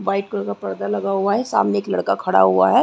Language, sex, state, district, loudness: Hindi, female, Chhattisgarh, Rajnandgaon, -19 LUFS